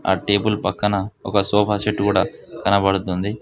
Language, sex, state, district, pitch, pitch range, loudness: Telugu, male, Telangana, Mahabubabad, 100 Hz, 95-105 Hz, -20 LUFS